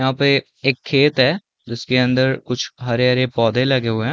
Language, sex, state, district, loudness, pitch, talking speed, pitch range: Hindi, male, Chhattisgarh, Balrampur, -18 LUFS, 130 Hz, 220 wpm, 125-135 Hz